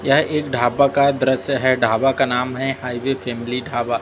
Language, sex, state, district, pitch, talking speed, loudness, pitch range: Hindi, male, Chhattisgarh, Raipur, 130 Hz, 195 wpm, -19 LUFS, 120-135 Hz